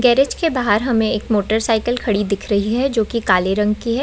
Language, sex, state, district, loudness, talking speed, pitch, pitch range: Hindi, female, Bihar, Muzaffarpur, -18 LUFS, 240 wpm, 225 Hz, 210-245 Hz